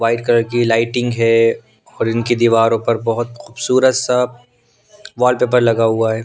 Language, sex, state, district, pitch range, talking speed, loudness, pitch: Hindi, male, Punjab, Pathankot, 115-125 Hz, 155 wpm, -15 LUFS, 120 Hz